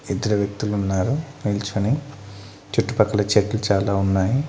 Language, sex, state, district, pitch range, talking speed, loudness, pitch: Telugu, male, Andhra Pradesh, Annamaya, 100-115 Hz, 95 wpm, -22 LUFS, 105 Hz